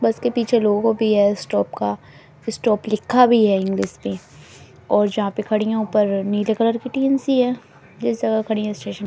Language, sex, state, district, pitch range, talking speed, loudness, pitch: Hindi, female, Delhi, New Delhi, 195-225 Hz, 210 wpm, -20 LUFS, 215 Hz